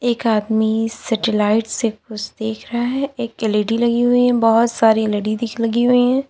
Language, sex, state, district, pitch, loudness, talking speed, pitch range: Hindi, female, Uttar Pradesh, Lalitpur, 230 Hz, -18 LUFS, 180 wpm, 220-240 Hz